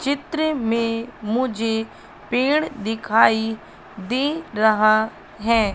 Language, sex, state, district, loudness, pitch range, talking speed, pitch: Hindi, female, Madhya Pradesh, Katni, -21 LUFS, 220-260 Hz, 85 wpm, 230 Hz